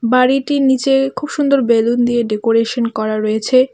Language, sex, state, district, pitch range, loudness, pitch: Bengali, female, West Bengal, Alipurduar, 230-270 Hz, -15 LUFS, 245 Hz